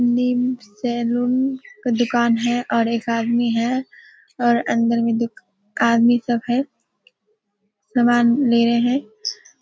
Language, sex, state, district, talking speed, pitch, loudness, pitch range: Hindi, female, Bihar, Kishanganj, 125 wpm, 240 Hz, -19 LUFS, 230-250 Hz